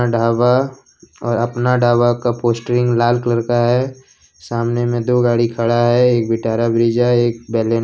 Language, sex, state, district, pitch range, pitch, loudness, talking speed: Hindi, male, Jharkhand, Ranchi, 115-120 Hz, 120 Hz, -16 LUFS, 170 wpm